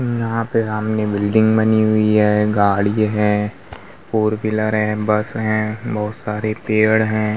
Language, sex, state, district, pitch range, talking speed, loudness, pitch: Hindi, male, Uttar Pradesh, Muzaffarnagar, 105-110 Hz, 145 wpm, -18 LUFS, 110 Hz